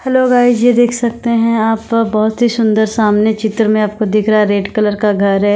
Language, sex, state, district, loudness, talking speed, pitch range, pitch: Hindi, female, Himachal Pradesh, Shimla, -13 LUFS, 235 wpm, 210-235 Hz, 220 Hz